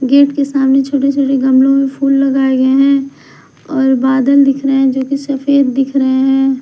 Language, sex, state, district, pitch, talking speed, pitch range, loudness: Hindi, female, Bihar, Kaimur, 270 Hz, 200 wpm, 265-275 Hz, -12 LUFS